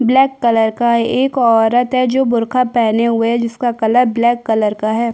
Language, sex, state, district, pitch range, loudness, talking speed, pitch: Hindi, female, Chhattisgarh, Korba, 225-250 Hz, -14 LUFS, 185 wpm, 235 Hz